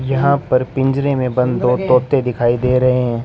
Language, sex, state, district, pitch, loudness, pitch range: Hindi, male, Rajasthan, Bikaner, 125 Hz, -16 LUFS, 125-135 Hz